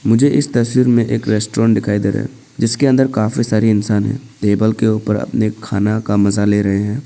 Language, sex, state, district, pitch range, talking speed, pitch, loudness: Hindi, male, Arunachal Pradesh, Papum Pare, 105-125 Hz, 210 wpm, 110 Hz, -15 LUFS